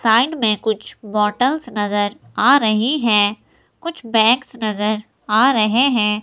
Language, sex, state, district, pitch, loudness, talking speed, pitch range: Hindi, female, Himachal Pradesh, Shimla, 220 Hz, -17 LUFS, 135 wpm, 210-255 Hz